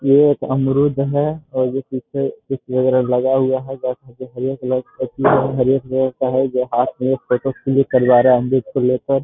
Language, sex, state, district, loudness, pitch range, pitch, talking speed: Hindi, male, Bihar, Jamui, -18 LUFS, 130-135 Hz, 130 Hz, 170 wpm